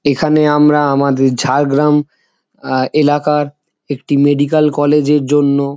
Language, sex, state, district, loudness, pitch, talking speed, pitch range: Bengali, male, West Bengal, Jhargram, -13 LUFS, 145 Hz, 115 wpm, 140-150 Hz